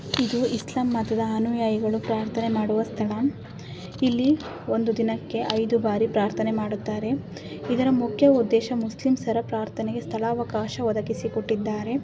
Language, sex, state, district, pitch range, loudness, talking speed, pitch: Kannada, female, Karnataka, Dharwad, 220-240 Hz, -25 LUFS, 110 wpm, 225 Hz